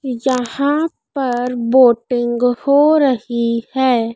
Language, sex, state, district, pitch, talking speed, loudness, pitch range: Hindi, female, Madhya Pradesh, Dhar, 250 Hz, 85 wpm, -16 LUFS, 240-275 Hz